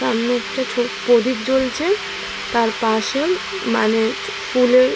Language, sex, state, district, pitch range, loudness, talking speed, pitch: Bengali, female, West Bengal, Jalpaiguri, 230-260 Hz, -19 LUFS, 110 wpm, 245 Hz